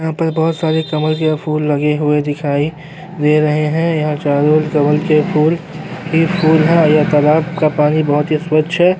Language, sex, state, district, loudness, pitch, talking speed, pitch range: Hindi, male, Uttarakhand, Tehri Garhwal, -14 LUFS, 155 Hz, 205 wpm, 150-160 Hz